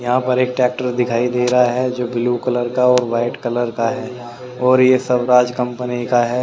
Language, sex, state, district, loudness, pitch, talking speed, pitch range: Hindi, male, Haryana, Rohtak, -17 LUFS, 125 Hz, 215 wpm, 120-125 Hz